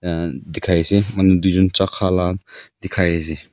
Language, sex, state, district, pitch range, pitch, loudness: Nagamese, male, Nagaland, Kohima, 85-95 Hz, 90 Hz, -18 LUFS